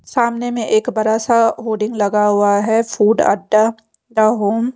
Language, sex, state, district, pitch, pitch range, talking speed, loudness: Hindi, female, Odisha, Khordha, 220 Hz, 210-230 Hz, 175 wpm, -16 LUFS